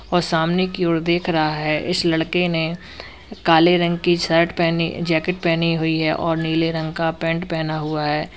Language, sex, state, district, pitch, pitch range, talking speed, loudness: Hindi, male, Uttar Pradesh, Lalitpur, 165 Hz, 160-175 Hz, 195 wpm, -19 LUFS